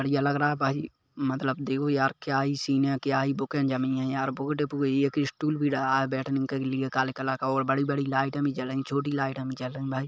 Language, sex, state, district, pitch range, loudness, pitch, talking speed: Hindi, male, Chhattisgarh, Kabirdham, 135-140 Hz, -28 LUFS, 135 Hz, 270 wpm